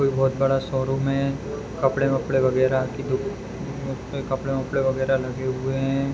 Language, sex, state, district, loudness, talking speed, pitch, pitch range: Hindi, male, Bihar, Madhepura, -24 LUFS, 135 wpm, 135 Hz, 130-135 Hz